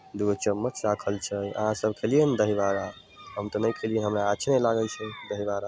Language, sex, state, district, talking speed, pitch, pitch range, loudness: Maithili, male, Bihar, Samastipur, 230 wpm, 105 Hz, 100-110 Hz, -27 LUFS